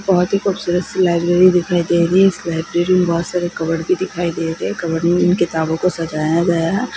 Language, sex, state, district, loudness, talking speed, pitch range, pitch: Maithili, female, Bihar, Begusarai, -17 LUFS, 250 wpm, 165-180 Hz, 175 Hz